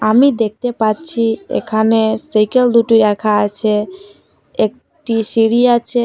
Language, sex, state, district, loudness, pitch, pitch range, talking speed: Bengali, female, Assam, Hailakandi, -14 LUFS, 225 Hz, 215-245 Hz, 110 wpm